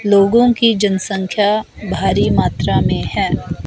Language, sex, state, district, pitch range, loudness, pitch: Hindi, female, Himachal Pradesh, Shimla, 195-225 Hz, -15 LUFS, 205 Hz